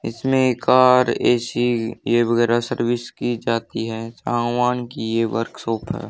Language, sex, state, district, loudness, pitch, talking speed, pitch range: Hindi, male, Haryana, Charkhi Dadri, -20 LUFS, 120 Hz, 135 wpm, 115-120 Hz